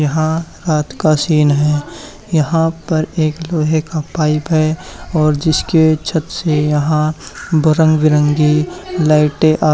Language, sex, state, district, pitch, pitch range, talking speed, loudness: Hindi, male, Haryana, Charkhi Dadri, 155 Hz, 150-160 Hz, 135 wpm, -15 LUFS